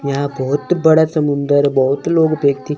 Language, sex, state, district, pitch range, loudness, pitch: Hindi, male, Chandigarh, Chandigarh, 140-160 Hz, -15 LUFS, 145 Hz